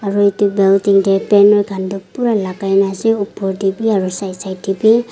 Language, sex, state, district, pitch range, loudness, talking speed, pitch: Nagamese, female, Nagaland, Kohima, 195-205 Hz, -15 LUFS, 210 wpm, 195 Hz